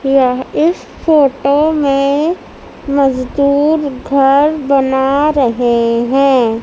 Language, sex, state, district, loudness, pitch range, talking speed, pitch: Hindi, female, Madhya Pradesh, Dhar, -12 LUFS, 265-295 Hz, 80 wpm, 275 Hz